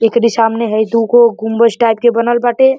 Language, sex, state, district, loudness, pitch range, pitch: Bhojpuri, male, Uttar Pradesh, Deoria, -12 LUFS, 225-240 Hz, 230 Hz